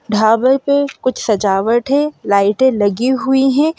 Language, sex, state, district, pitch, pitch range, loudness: Hindi, female, Madhya Pradesh, Bhopal, 255 Hz, 215-275 Hz, -14 LUFS